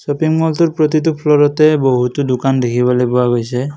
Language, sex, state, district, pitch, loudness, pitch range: Assamese, male, Assam, Kamrup Metropolitan, 145 Hz, -14 LUFS, 125-155 Hz